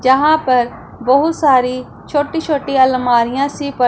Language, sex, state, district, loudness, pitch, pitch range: Hindi, female, Punjab, Pathankot, -15 LUFS, 265 Hz, 255-290 Hz